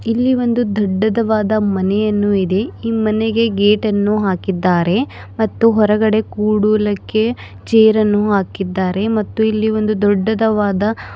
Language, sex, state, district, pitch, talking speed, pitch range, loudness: Kannada, female, Karnataka, Bidar, 215 Hz, 100 wpm, 205-220 Hz, -16 LUFS